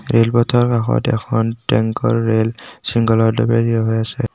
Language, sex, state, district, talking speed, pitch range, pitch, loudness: Assamese, male, Assam, Kamrup Metropolitan, 110 wpm, 115-120 Hz, 115 Hz, -17 LUFS